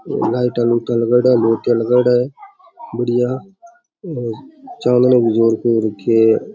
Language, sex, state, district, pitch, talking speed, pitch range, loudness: Rajasthani, male, Rajasthan, Churu, 125 Hz, 120 wpm, 115-140 Hz, -16 LUFS